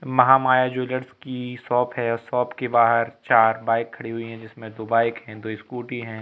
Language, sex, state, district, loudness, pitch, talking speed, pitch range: Hindi, male, Madhya Pradesh, Katni, -22 LUFS, 115 Hz, 210 wpm, 115-125 Hz